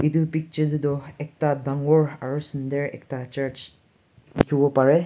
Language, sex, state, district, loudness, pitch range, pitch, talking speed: Nagamese, male, Nagaland, Kohima, -24 LUFS, 135-150 Hz, 145 Hz, 140 wpm